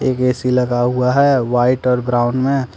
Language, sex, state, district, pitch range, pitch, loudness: Hindi, male, Jharkhand, Deoghar, 125-130 Hz, 125 Hz, -16 LUFS